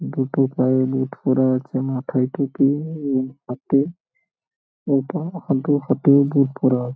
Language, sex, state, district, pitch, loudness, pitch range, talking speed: Bengali, male, West Bengal, Paschim Medinipur, 135 Hz, -20 LUFS, 130-145 Hz, 120 wpm